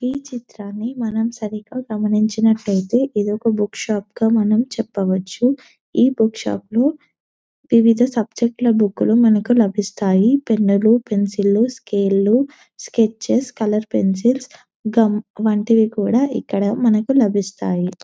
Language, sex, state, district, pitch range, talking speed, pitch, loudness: Telugu, female, Telangana, Nalgonda, 205-240 Hz, 125 wpm, 220 Hz, -18 LUFS